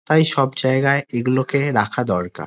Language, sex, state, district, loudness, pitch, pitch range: Bengali, male, West Bengal, Dakshin Dinajpur, -18 LUFS, 130 Hz, 120-140 Hz